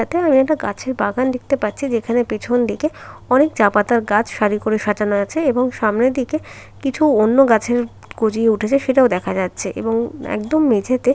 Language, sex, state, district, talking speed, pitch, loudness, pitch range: Bengali, female, West Bengal, Jalpaiguri, 160 wpm, 240 Hz, -18 LUFS, 215-265 Hz